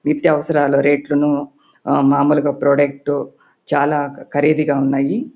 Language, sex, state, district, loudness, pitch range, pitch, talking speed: Telugu, male, Andhra Pradesh, Anantapur, -17 LUFS, 140-150 Hz, 145 Hz, 90 wpm